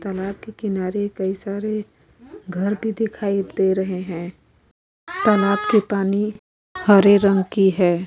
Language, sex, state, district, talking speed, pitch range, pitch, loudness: Hindi, female, Uttar Pradesh, Muzaffarnagar, 140 wpm, 190-210 Hz, 200 Hz, -20 LUFS